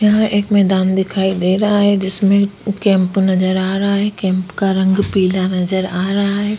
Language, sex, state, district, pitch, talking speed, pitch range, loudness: Hindi, female, Chhattisgarh, Korba, 195 Hz, 190 wpm, 190-200 Hz, -15 LUFS